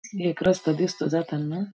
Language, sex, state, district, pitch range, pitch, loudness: Marathi, female, Maharashtra, Aurangabad, 160-185 Hz, 175 Hz, -25 LUFS